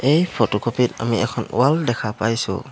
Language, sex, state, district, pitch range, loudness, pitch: Assamese, male, Assam, Hailakandi, 115-125 Hz, -20 LUFS, 120 Hz